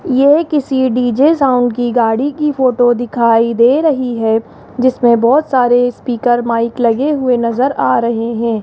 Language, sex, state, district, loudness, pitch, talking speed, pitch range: Hindi, female, Rajasthan, Jaipur, -13 LUFS, 245 Hz, 160 wpm, 235-265 Hz